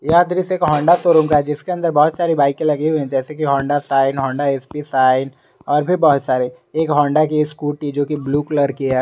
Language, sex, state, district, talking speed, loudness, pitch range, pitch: Hindi, male, Jharkhand, Garhwa, 245 wpm, -17 LUFS, 140-155 Hz, 145 Hz